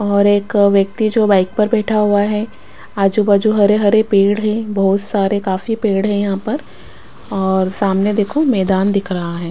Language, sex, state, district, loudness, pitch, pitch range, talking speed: Hindi, female, Punjab, Pathankot, -15 LUFS, 205 Hz, 195-215 Hz, 185 wpm